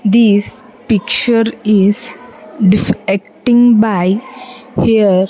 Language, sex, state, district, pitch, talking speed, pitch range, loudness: English, female, Andhra Pradesh, Sri Satya Sai, 220 Hz, 80 wpm, 205-245 Hz, -12 LUFS